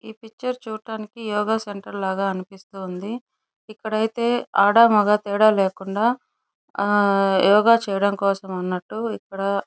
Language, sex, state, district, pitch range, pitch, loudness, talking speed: Telugu, female, Andhra Pradesh, Chittoor, 195-225 Hz, 210 Hz, -21 LUFS, 110 wpm